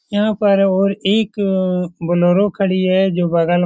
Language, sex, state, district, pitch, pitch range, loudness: Hindi, male, Bihar, Supaul, 190 Hz, 180-200 Hz, -16 LUFS